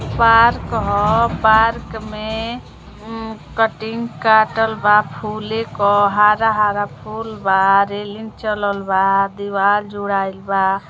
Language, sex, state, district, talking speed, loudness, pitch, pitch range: Bhojpuri, female, Uttar Pradesh, Deoria, 105 wpm, -17 LUFS, 210 Hz, 200-220 Hz